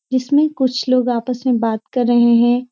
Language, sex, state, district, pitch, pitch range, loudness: Hindi, female, Uttarakhand, Uttarkashi, 250 Hz, 240-255 Hz, -16 LUFS